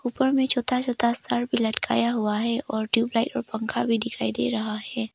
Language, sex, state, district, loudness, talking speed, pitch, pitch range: Hindi, female, Arunachal Pradesh, Papum Pare, -24 LUFS, 210 wpm, 235 Hz, 220-245 Hz